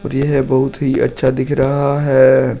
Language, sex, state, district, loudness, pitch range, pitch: Hindi, male, Uttar Pradesh, Shamli, -14 LUFS, 130-140 Hz, 135 Hz